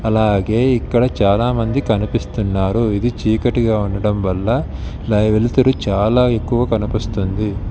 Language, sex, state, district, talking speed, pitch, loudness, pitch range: Telugu, male, Telangana, Hyderabad, 95 wpm, 110 Hz, -17 LUFS, 105-120 Hz